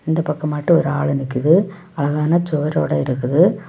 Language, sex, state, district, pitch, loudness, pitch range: Tamil, female, Tamil Nadu, Kanyakumari, 150 Hz, -18 LUFS, 145-165 Hz